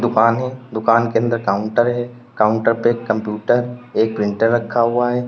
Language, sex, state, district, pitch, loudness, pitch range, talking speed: Hindi, male, Uttar Pradesh, Lalitpur, 115 Hz, -18 LUFS, 110-120 Hz, 180 wpm